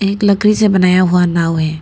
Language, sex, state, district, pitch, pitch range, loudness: Hindi, female, Arunachal Pradesh, Papum Pare, 185 Hz, 170-200 Hz, -12 LUFS